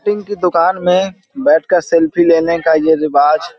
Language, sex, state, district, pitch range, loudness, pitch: Hindi, male, Uttar Pradesh, Hamirpur, 160-190 Hz, -13 LUFS, 170 Hz